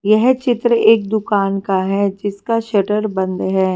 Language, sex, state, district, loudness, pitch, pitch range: Hindi, female, Delhi, New Delhi, -16 LUFS, 205 Hz, 195-225 Hz